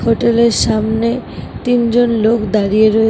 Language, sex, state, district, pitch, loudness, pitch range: Bengali, female, West Bengal, Kolkata, 230 Hz, -14 LUFS, 220-235 Hz